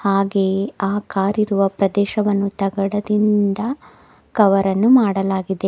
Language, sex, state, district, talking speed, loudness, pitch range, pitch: Kannada, female, Karnataka, Bidar, 95 wpm, -18 LUFS, 195-210 Hz, 200 Hz